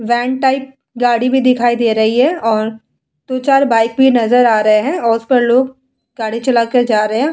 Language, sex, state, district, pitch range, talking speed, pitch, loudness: Hindi, female, Bihar, Vaishali, 225-265 Hz, 230 wpm, 245 Hz, -13 LUFS